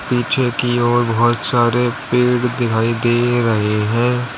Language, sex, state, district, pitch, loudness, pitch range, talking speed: Hindi, male, Uttar Pradesh, Lalitpur, 120 Hz, -16 LUFS, 115-125 Hz, 135 wpm